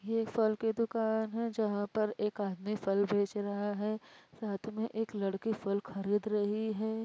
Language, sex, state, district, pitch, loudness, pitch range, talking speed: Hindi, female, Uttar Pradesh, Varanasi, 215 Hz, -34 LUFS, 205-220 Hz, 180 wpm